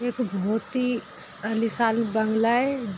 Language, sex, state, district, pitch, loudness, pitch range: Hindi, female, Bihar, Darbhanga, 225 Hz, -25 LUFS, 215-245 Hz